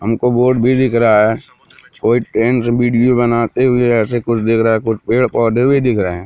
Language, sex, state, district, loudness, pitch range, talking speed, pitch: Hindi, male, Madhya Pradesh, Katni, -14 LUFS, 115-125 Hz, 220 wpm, 120 Hz